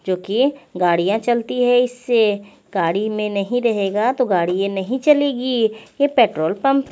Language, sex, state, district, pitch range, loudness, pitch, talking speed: Hindi, female, Chandigarh, Chandigarh, 200-255 Hz, -18 LUFS, 230 Hz, 145 wpm